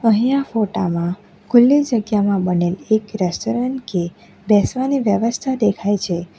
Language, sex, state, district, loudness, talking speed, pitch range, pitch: Gujarati, female, Gujarat, Valsad, -18 LUFS, 120 wpm, 185-240 Hz, 210 Hz